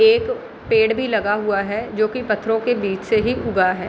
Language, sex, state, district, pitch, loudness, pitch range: Hindi, female, Bihar, Kishanganj, 220 Hz, -20 LUFS, 205-240 Hz